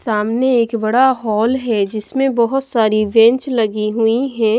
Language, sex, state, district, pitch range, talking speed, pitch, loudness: Hindi, female, Chhattisgarh, Raipur, 215-255 Hz, 155 wpm, 230 Hz, -15 LUFS